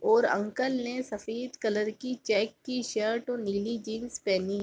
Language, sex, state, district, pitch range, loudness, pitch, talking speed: Hindi, female, Uttar Pradesh, Jalaun, 210-255 Hz, -30 LUFS, 230 Hz, 180 wpm